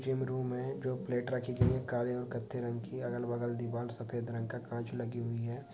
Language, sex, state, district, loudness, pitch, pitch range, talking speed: Hindi, male, Bihar, Sitamarhi, -37 LUFS, 120 Hz, 120-125 Hz, 230 wpm